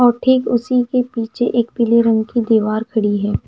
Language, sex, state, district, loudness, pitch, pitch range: Hindi, female, Himachal Pradesh, Shimla, -16 LUFS, 235 Hz, 225-245 Hz